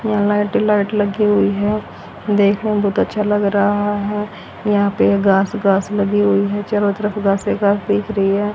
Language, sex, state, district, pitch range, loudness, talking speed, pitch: Hindi, female, Haryana, Rohtak, 200-210 Hz, -17 LUFS, 205 wpm, 205 Hz